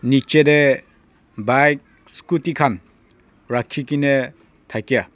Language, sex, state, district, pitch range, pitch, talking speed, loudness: Nagamese, male, Nagaland, Dimapur, 120-145 Hz, 140 Hz, 95 wpm, -18 LUFS